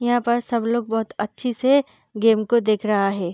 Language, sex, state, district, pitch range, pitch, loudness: Hindi, female, Bihar, Darbhanga, 215-240 Hz, 230 Hz, -21 LUFS